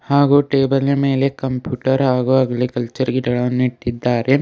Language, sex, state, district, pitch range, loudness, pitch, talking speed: Kannada, male, Karnataka, Bidar, 125-135 Hz, -17 LUFS, 130 Hz, 95 wpm